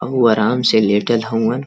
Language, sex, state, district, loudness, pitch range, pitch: Bhojpuri, male, Uttar Pradesh, Varanasi, -15 LUFS, 110-125 Hz, 115 Hz